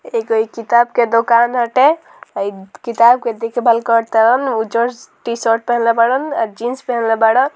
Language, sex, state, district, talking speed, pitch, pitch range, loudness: Bhojpuri, female, Bihar, Muzaffarpur, 160 wpm, 235 Hz, 230-245 Hz, -15 LUFS